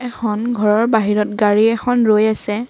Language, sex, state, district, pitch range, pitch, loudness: Assamese, female, Assam, Kamrup Metropolitan, 210-235 Hz, 215 Hz, -16 LUFS